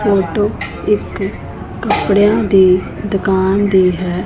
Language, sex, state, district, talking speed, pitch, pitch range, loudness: Punjabi, female, Punjab, Pathankot, 100 wpm, 195 Hz, 190-205 Hz, -14 LUFS